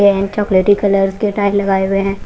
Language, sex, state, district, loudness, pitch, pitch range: Hindi, female, Punjab, Kapurthala, -14 LUFS, 200 Hz, 195-205 Hz